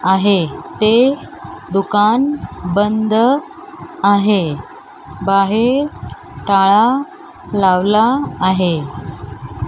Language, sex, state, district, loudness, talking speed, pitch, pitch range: Marathi, male, Maharashtra, Mumbai Suburban, -15 LUFS, 55 wpm, 205 Hz, 185-235 Hz